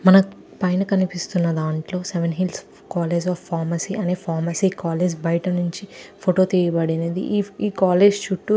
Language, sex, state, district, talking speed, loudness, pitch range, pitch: Telugu, female, Andhra Pradesh, Chittoor, 140 wpm, -21 LUFS, 170-190 Hz, 180 Hz